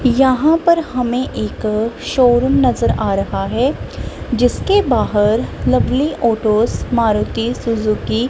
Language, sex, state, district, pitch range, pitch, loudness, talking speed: Hindi, female, Punjab, Kapurthala, 225-260 Hz, 240 Hz, -16 LUFS, 115 wpm